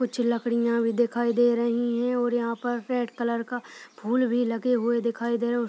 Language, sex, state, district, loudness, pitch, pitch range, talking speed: Hindi, female, Uttar Pradesh, Deoria, -26 LUFS, 235 Hz, 235-245 Hz, 220 wpm